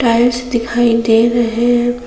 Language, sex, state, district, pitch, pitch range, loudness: Hindi, female, Jharkhand, Palamu, 235 Hz, 230-245 Hz, -13 LUFS